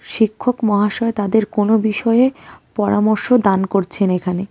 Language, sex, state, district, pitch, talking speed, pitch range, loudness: Bengali, female, West Bengal, Cooch Behar, 210 Hz, 120 wpm, 200-225 Hz, -17 LUFS